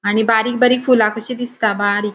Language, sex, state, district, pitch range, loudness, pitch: Konkani, female, Goa, North and South Goa, 210-245 Hz, -16 LUFS, 220 Hz